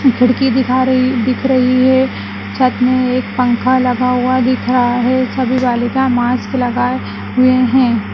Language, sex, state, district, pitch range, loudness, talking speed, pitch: Kumaoni, female, Uttarakhand, Uttarkashi, 245-255 Hz, -14 LUFS, 155 wpm, 255 Hz